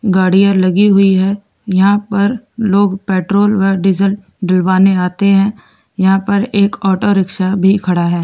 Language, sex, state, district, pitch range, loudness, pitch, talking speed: Hindi, female, Delhi, New Delhi, 190-200 Hz, -13 LUFS, 195 Hz, 145 wpm